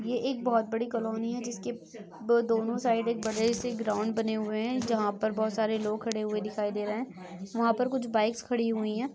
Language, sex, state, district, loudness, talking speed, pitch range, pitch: Hindi, female, Jharkhand, Sahebganj, -30 LUFS, 210 wpm, 215-235 Hz, 225 Hz